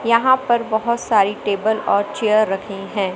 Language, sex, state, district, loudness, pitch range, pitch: Hindi, male, Madhya Pradesh, Katni, -18 LUFS, 200-235 Hz, 215 Hz